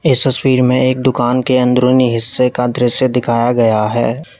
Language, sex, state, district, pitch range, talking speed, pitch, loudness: Hindi, male, Uttar Pradesh, Lalitpur, 120-130 Hz, 175 wpm, 125 Hz, -13 LUFS